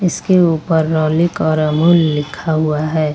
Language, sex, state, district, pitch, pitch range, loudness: Hindi, female, Jharkhand, Ranchi, 160 Hz, 155-170 Hz, -15 LUFS